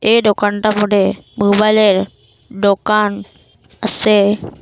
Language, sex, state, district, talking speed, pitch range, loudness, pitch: Bengali, female, Assam, Kamrup Metropolitan, 80 wpm, 195-215 Hz, -14 LUFS, 205 Hz